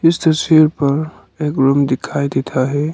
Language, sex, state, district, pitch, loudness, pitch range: Hindi, male, Arunachal Pradesh, Lower Dibang Valley, 150 Hz, -16 LUFS, 140-155 Hz